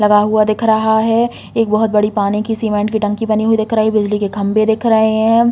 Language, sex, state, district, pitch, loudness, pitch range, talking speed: Hindi, female, Uttar Pradesh, Hamirpur, 220 Hz, -14 LUFS, 210-225 Hz, 260 wpm